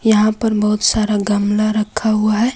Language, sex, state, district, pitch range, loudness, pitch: Hindi, female, Jharkhand, Ranchi, 210-220 Hz, -16 LUFS, 215 Hz